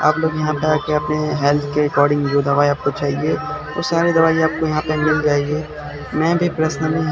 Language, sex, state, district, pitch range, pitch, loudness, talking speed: Hindi, male, Bihar, Katihar, 145-155 Hz, 150 Hz, -18 LUFS, 210 wpm